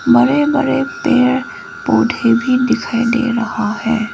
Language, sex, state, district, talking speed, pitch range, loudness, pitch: Hindi, female, Arunachal Pradesh, Lower Dibang Valley, 130 wpm, 235-275 Hz, -15 LUFS, 250 Hz